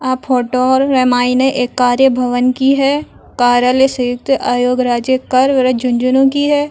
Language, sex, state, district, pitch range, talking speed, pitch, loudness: Marwari, female, Rajasthan, Churu, 250-270 Hz, 145 wpm, 255 Hz, -13 LUFS